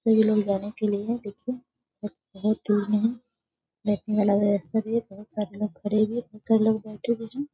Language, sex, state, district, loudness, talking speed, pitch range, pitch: Hindi, female, Bihar, Sitamarhi, -26 LUFS, 215 wpm, 205-225 Hz, 215 Hz